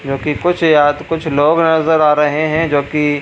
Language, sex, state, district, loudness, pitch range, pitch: Hindi, male, Bihar, Supaul, -14 LUFS, 145-160 Hz, 150 Hz